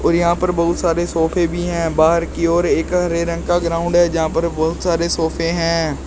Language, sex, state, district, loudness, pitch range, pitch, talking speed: Hindi, male, Uttar Pradesh, Shamli, -17 LUFS, 165-175 Hz, 170 Hz, 215 wpm